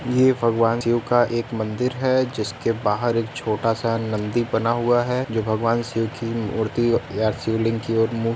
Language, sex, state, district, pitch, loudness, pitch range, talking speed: Hindi, male, Uttar Pradesh, Varanasi, 115 Hz, -22 LUFS, 110-120 Hz, 195 wpm